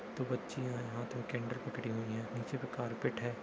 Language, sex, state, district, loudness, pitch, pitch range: Hindi, male, Bihar, Darbhanga, -40 LUFS, 120 Hz, 115-125 Hz